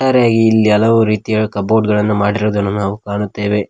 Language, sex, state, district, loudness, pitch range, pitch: Kannada, male, Karnataka, Koppal, -14 LUFS, 105-110 Hz, 105 Hz